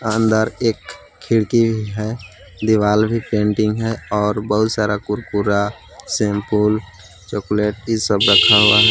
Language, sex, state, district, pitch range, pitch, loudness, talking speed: Hindi, male, Jharkhand, Palamu, 105-110 Hz, 105 Hz, -17 LUFS, 130 wpm